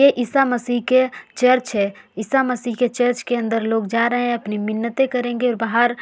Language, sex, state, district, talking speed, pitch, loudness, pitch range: Hindi, female, Uttar Pradesh, Varanasi, 220 wpm, 240 Hz, -19 LUFS, 230-250 Hz